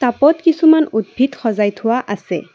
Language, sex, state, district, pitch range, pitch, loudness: Assamese, female, Assam, Kamrup Metropolitan, 205-295 Hz, 240 Hz, -15 LUFS